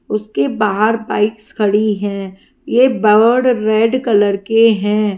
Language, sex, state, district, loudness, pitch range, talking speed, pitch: Hindi, female, Haryana, Rohtak, -14 LUFS, 205-225 Hz, 125 wpm, 215 Hz